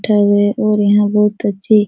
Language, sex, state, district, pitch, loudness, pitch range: Hindi, female, Bihar, Supaul, 210 Hz, -13 LUFS, 205-210 Hz